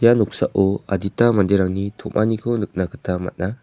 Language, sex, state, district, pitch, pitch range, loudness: Garo, male, Meghalaya, West Garo Hills, 100 Hz, 95-110 Hz, -20 LUFS